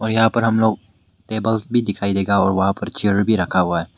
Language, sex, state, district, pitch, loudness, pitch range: Hindi, male, Meghalaya, West Garo Hills, 100 Hz, -19 LUFS, 95-110 Hz